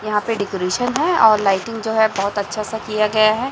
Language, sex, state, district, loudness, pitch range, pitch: Hindi, male, Chhattisgarh, Raipur, -18 LUFS, 205-220 Hz, 215 Hz